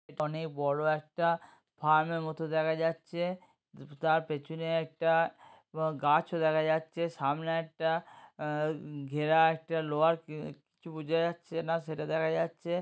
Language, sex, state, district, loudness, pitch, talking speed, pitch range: Bengali, male, West Bengal, Jhargram, -31 LUFS, 160 Hz, 130 wpm, 155-165 Hz